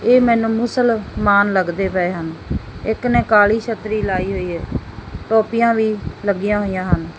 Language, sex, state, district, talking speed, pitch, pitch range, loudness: Punjabi, female, Punjab, Fazilka, 150 wpm, 210 Hz, 190-225 Hz, -18 LUFS